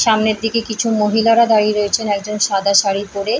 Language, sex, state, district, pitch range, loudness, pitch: Bengali, female, West Bengal, Paschim Medinipur, 205-220 Hz, -15 LUFS, 210 Hz